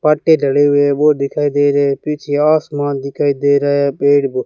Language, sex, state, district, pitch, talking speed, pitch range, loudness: Hindi, male, Rajasthan, Bikaner, 145 Hz, 190 wpm, 140-150 Hz, -14 LUFS